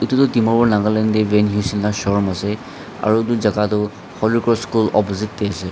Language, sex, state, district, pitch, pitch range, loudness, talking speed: Nagamese, male, Nagaland, Dimapur, 105 Hz, 105-110 Hz, -18 LUFS, 200 wpm